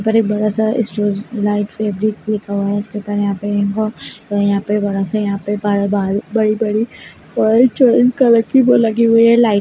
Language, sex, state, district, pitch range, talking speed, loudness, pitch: Kumaoni, female, Uttarakhand, Uttarkashi, 205-225 Hz, 185 wpm, -15 LUFS, 210 Hz